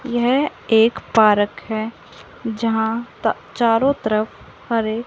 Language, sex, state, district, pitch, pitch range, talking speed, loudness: Hindi, female, Haryana, Rohtak, 225 Hz, 220-240 Hz, 105 wpm, -19 LUFS